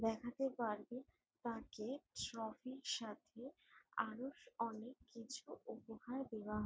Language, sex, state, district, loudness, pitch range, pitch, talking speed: Bengali, female, West Bengal, Jalpaiguri, -47 LUFS, 225-265 Hz, 235 Hz, 110 wpm